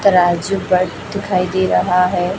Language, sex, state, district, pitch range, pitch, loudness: Hindi, female, Chhattisgarh, Raipur, 180-190 Hz, 180 Hz, -16 LUFS